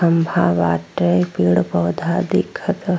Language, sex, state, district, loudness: Bhojpuri, female, Uttar Pradesh, Gorakhpur, -18 LUFS